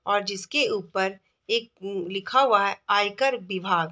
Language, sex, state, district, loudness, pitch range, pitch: Hindi, female, Bihar, East Champaran, -25 LUFS, 190-230 Hz, 200 Hz